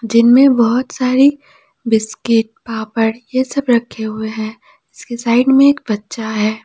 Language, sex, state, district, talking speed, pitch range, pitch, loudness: Hindi, female, Jharkhand, Palamu, 145 wpm, 220-260 Hz, 235 Hz, -15 LUFS